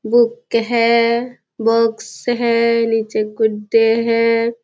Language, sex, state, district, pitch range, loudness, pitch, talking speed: Hindi, female, Bihar, Jahanabad, 225-235 Hz, -16 LUFS, 230 Hz, 90 wpm